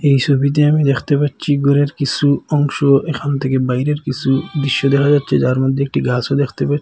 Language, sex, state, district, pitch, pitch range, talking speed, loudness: Bengali, male, Assam, Hailakandi, 140 Hz, 135-145 Hz, 185 wpm, -16 LUFS